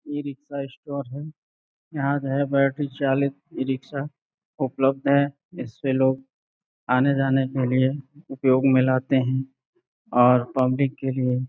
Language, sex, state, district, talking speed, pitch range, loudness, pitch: Hindi, male, Uttar Pradesh, Gorakhpur, 130 wpm, 130-140 Hz, -23 LUFS, 135 Hz